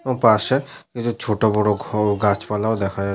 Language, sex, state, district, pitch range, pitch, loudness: Bengali, male, West Bengal, Malda, 100-115 Hz, 105 Hz, -20 LUFS